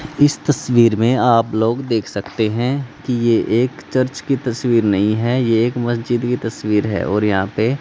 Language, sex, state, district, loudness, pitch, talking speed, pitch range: Hindi, male, Haryana, Jhajjar, -17 LUFS, 120 Hz, 190 wpm, 110-130 Hz